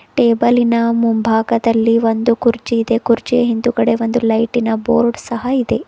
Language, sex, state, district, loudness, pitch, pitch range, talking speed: Kannada, female, Karnataka, Bidar, -15 LUFS, 230 Hz, 230-240 Hz, 145 wpm